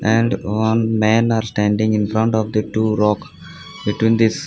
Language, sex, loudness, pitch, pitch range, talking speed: English, male, -18 LUFS, 110 Hz, 105-110 Hz, 160 wpm